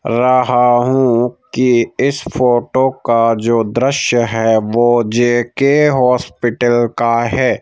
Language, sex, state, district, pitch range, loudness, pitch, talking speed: Hindi, male, Madhya Pradesh, Bhopal, 115-130 Hz, -13 LUFS, 120 Hz, 110 wpm